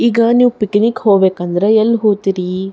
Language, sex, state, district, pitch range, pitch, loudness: Kannada, female, Karnataka, Bijapur, 190-230 Hz, 210 Hz, -13 LUFS